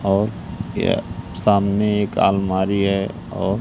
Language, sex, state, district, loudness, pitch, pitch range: Hindi, male, Madhya Pradesh, Katni, -20 LUFS, 100 Hz, 95-105 Hz